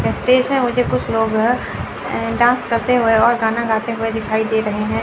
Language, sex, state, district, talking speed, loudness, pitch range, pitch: Hindi, female, Chandigarh, Chandigarh, 190 wpm, -17 LUFS, 220-245 Hz, 230 Hz